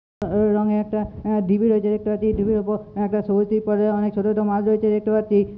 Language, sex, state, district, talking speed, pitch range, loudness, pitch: Bengali, male, West Bengal, Purulia, 215 wpm, 205-215 Hz, -21 LUFS, 210 Hz